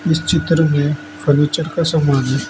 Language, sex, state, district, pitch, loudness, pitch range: Hindi, male, Uttar Pradesh, Saharanpur, 160 Hz, -16 LUFS, 145-165 Hz